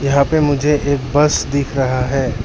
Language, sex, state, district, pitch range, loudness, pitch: Hindi, male, Arunachal Pradesh, Lower Dibang Valley, 135-145 Hz, -16 LUFS, 140 Hz